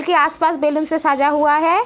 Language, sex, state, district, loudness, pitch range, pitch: Hindi, female, Uttar Pradesh, Etah, -16 LUFS, 295-320 Hz, 305 Hz